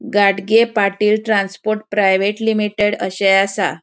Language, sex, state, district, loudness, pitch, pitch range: Konkani, female, Goa, North and South Goa, -16 LUFS, 205 Hz, 195-215 Hz